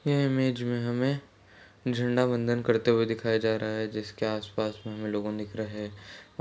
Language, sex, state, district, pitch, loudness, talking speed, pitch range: Hindi, male, Chhattisgarh, Raigarh, 110 Hz, -29 LUFS, 185 wpm, 105-120 Hz